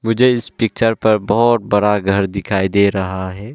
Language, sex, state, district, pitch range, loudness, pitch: Hindi, male, Arunachal Pradesh, Longding, 100-115 Hz, -16 LUFS, 105 Hz